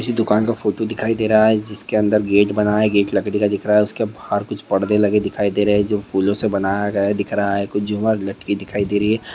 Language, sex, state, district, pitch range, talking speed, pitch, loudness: Hindi, male, Andhra Pradesh, Guntur, 100-105 Hz, 250 wpm, 105 Hz, -18 LUFS